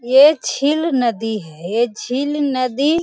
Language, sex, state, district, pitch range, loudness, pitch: Hindi, female, Bihar, Sitamarhi, 230-290 Hz, -17 LUFS, 260 Hz